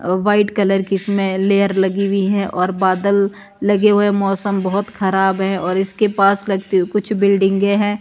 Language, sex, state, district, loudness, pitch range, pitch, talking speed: Hindi, female, Himachal Pradesh, Shimla, -16 LUFS, 190-205 Hz, 195 Hz, 195 wpm